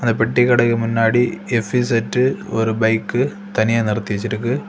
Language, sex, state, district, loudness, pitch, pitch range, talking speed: Tamil, male, Tamil Nadu, Kanyakumari, -18 LUFS, 115 Hz, 110-120 Hz, 130 wpm